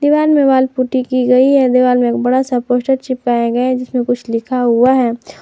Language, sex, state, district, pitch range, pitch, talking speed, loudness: Hindi, female, Jharkhand, Garhwa, 245-260 Hz, 255 Hz, 175 wpm, -14 LUFS